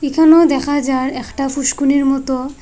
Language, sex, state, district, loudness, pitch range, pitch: Bengali, female, Assam, Hailakandi, -15 LUFS, 265-285 Hz, 275 Hz